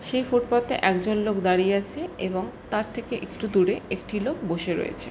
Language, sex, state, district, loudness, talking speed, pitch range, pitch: Bengali, female, West Bengal, Jhargram, -25 LUFS, 210 wpm, 185-235 Hz, 210 Hz